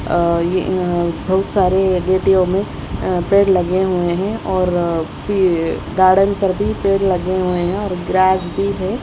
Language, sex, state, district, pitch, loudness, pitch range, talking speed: Hindi, female, Odisha, Khordha, 185 Hz, -17 LUFS, 180-195 Hz, 175 wpm